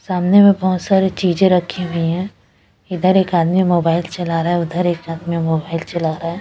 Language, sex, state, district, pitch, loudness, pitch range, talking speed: Hindi, female, Bihar, West Champaran, 175 Hz, -16 LUFS, 165-185 Hz, 205 wpm